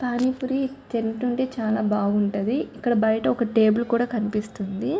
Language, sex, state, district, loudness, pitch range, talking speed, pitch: Telugu, female, Andhra Pradesh, Chittoor, -24 LUFS, 215-245 Hz, 130 wpm, 230 Hz